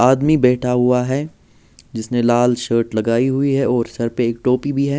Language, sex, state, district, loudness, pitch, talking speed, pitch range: Hindi, male, Bihar, Patna, -17 LUFS, 125 Hz, 205 wpm, 120-135 Hz